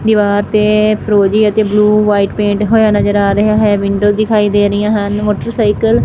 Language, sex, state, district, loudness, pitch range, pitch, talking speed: Punjabi, female, Punjab, Fazilka, -12 LUFS, 205-215 Hz, 210 Hz, 190 wpm